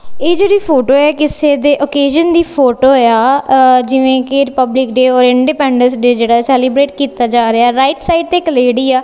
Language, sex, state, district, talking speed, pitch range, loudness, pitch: Punjabi, female, Punjab, Kapurthala, 185 wpm, 250-290 Hz, -10 LUFS, 265 Hz